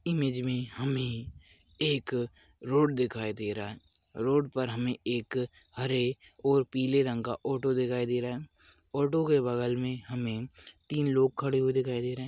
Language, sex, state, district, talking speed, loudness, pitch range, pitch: Hindi, male, Maharashtra, Aurangabad, 175 wpm, -31 LUFS, 120-135 Hz, 125 Hz